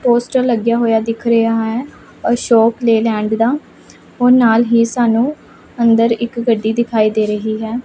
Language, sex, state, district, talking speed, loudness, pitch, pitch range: Punjabi, female, Punjab, Pathankot, 155 wpm, -14 LUFS, 230 Hz, 225-240 Hz